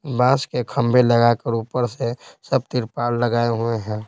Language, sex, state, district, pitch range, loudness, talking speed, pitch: Hindi, male, Bihar, Patna, 115-125 Hz, -20 LUFS, 160 wpm, 120 Hz